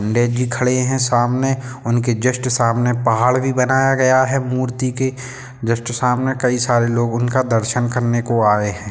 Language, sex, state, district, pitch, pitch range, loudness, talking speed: Hindi, male, Bihar, Sitamarhi, 125 Hz, 120-130 Hz, -17 LUFS, 175 wpm